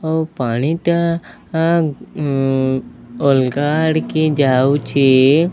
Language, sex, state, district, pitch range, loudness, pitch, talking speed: Odia, male, Odisha, Sambalpur, 135-160 Hz, -16 LUFS, 145 Hz, 55 wpm